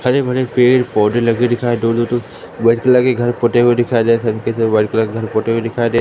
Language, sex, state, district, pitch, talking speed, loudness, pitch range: Hindi, male, Madhya Pradesh, Katni, 120 Hz, 270 wpm, -15 LUFS, 115-120 Hz